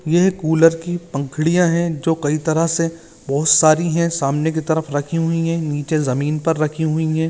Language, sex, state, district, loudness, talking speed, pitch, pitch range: Hindi, male, Jharkhand, Jamtara, -18 LUFS, 195 wpm, 160 Hz, 155-165 Hz